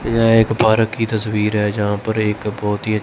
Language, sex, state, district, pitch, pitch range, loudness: Hindi, male, Chandigarh, Chandigarh, 110 Hz, 105-110 Hz, -17 LUFS